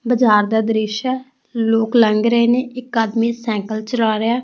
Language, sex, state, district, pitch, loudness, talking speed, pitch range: Punjabi, female, Punjab, Fazilka, 230 Hz, -17 LUFS, 190 wpm, 220-245 Hz